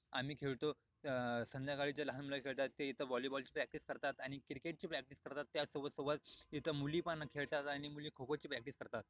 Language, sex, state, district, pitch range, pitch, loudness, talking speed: Marathi, male, Maharashtra, Aurangabad, 135-150 Hz, 145 Hz, -44 LUFS, 190 wpm